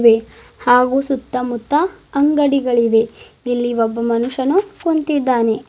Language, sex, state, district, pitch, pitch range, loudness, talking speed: Kannada, female, Karnataka, Bidar, 250 Hz, 235-290 Hz, -17 LUFS, 95 wpm